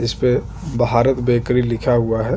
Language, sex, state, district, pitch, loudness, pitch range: Hindi, male, Chhattisgarh, Jashpur, 120 Hz, -18 LUFS, 115-125 Hz